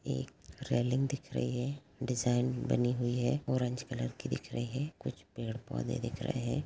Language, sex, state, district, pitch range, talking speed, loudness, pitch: Hindi, female, Chhattisgarh, Rajnandgaon, 115-130 Hz, 190 wpm, -35 LUFS, 125 Hz